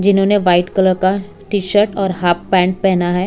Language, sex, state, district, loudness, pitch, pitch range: Hindi, female, Bihar, West Champaran, -15 LUFS, 190 Hz, 180-200 Hz